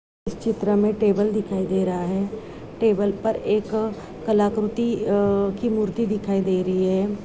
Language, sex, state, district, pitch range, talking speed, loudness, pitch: Hindi, female, Bihar, Purnia, 195-220 Hz, 155 wpm, -23 LUFS, 205 Hz